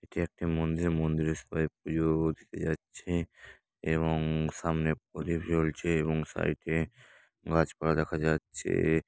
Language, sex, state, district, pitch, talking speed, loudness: Bengali, male, West Bengal, Dakshin Dinajpur, 80 Hz, 110 wpm, -31 LUFS